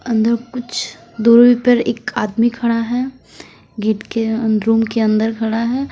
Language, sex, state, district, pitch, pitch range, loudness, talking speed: Hindi, female, Odisha, Sambalpur, 230 Hz, 220-240 Hz, -16 LUFS, 160 wpm